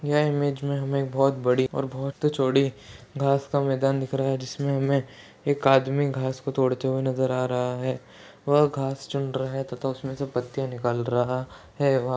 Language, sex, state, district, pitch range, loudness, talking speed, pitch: Hindi, male, Uttarakhand, Tehri Garhwal, 130-140 Hz, -25 LUFS, 190 wpm, 135 Hz